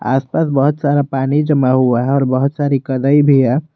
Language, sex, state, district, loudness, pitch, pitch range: Hindi, male, Jharkhand, Garhwa, -14 LUFS, 135 Hz, 130-145 Hz